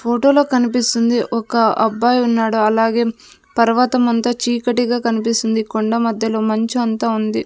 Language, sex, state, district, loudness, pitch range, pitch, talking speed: Telugu, female, Andhra Pradesh, Sri Satya Sai, -16 LUFS, 225-245 Hz, 230 Hz, 120 wpm